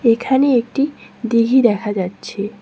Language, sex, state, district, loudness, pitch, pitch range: Bengali, female, West Bengal, Cooch Behar, -17 LUFS, 230 Hz, 210-260 Hz